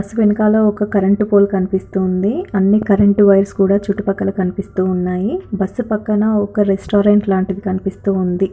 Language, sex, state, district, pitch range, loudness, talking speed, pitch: Telugu, female, Andhra Pradesh, Srikakulam, 190-205 Hz, -15 LUFS, 155 wpm, 200 Hz